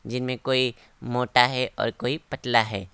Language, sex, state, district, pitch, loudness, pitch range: Hindi, male, West Bengal, Alipurduar, 125 Hz, -24 LUFS, 115-130 Hz